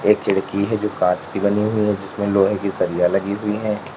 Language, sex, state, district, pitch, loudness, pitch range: Hindi, male, Uttar Pradesh, Lalitpur, 100 Hz, -20 LUFS, 95-105 Hz